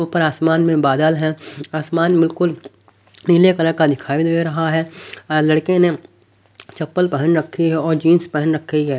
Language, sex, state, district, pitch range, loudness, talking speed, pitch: Hindi, male, Haryana, Rohtak, 150-165 Hz, -17 LUFS, 165 wpm, 160 Hz